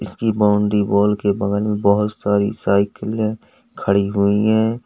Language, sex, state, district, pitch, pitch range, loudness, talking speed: Hindi, male, Uttar Pradesh, Lalitpur, 105 Hz, 100-110 Hz, -18 LUFS, 150 wpm